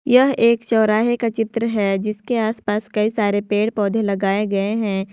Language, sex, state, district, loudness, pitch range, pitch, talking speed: Hindi, female, Jharkhand, Ranchi, -19 LUFS, 205-230 Hz, 215 Hz, 175 wpm